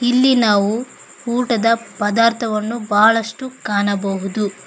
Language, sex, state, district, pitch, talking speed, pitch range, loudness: Kannada, female, Karnataka, Koppal, 225 Hz, 75 wpm, 205-235 Hz, -17 LUFS